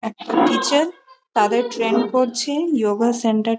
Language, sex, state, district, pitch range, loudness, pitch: Bengali, female, West Bengal, Malda, 225-295 Hz, -19 LUFS, 240 Hz